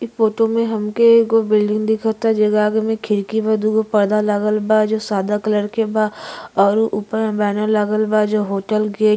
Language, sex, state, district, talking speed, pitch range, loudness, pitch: Bhojpuri, female, Uttar Pradesh, Ghazipur, 205 wpm, 210-220 Hz, -17 LUFS, 215 Hz